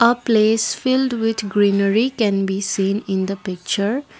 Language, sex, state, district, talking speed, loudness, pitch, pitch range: English, female, Assam, Kamrup Metropolitan, 155 wpm, -19 LUFS, 210 Hz, 195-230 Hz